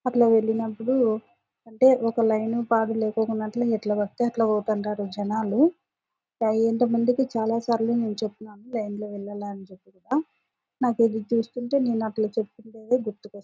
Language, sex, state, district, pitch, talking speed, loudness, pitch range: Telugu, female, Andhra Pradesh, Anantapur, 225 Hz, 120 wpm, -25 LUFS, 215-235 Hz